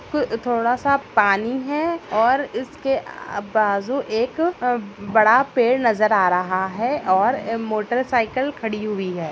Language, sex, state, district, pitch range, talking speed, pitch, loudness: Hindi, female, Bihar, Darbhanga, 210-260 Hz, 120 wpm, 235 Hz, -20 LUFS